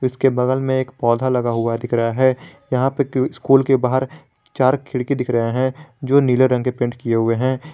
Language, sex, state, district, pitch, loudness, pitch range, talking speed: Hindi, male, Jharkhand, Garhwa, 130 Hz, -18 LUFS, 125-135 Hz, 225 wpm